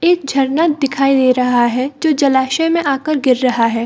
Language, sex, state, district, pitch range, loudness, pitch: Hindi, female, Chhattisgarh, Balrampur, 255-305 Hz, -14 LUFS, 275 Hz